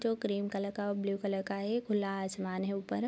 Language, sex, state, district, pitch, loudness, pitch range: Hindi, female, Bihar, Sitamarhi, 200 Hz, -35 LUFS, 195-205 Hz